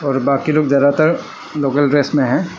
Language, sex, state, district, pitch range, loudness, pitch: Hindi, male, Arunachal Pradesh, Lower Dibang Valley, 140-150 Hz, -15 LUFS, 140 Hz